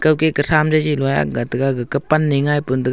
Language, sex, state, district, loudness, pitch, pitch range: Wancho, male, Arunachal Pradesh, Longding, -17 LUFS, 145 Hz, 135-155 Hz